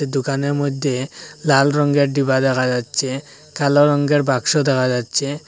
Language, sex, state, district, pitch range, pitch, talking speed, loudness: Bengali, male, Assam, Hailakandi, 135-145 Hz, 140 Hz, 130 wpm, -18 LUFS